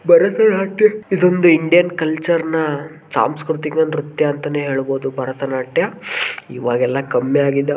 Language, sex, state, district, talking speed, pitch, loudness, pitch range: Kannada, male, Karnataka, Gulbarga, 115 wpm, 155 Hz, -17 LUFS, 140-170 Hz